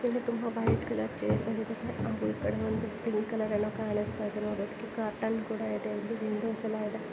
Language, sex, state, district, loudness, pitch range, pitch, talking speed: Kannada, female, Karnataka, Dharwad, -33 LUFS, 210-225 Hz, 215 Hz, 175 wpm